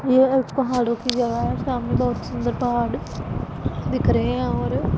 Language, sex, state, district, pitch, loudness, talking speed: Hindi, female, Punjab, Pathankot, 235 Hz, -22 LUFS, 170 wpm